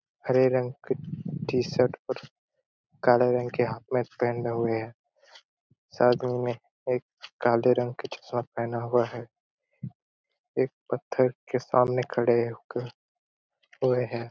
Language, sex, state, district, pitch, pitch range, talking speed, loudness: Hindi, male, Chhattisgarh, Korba, 125 Hz, 120-125 Hz, 140 wpm, -27 LUFS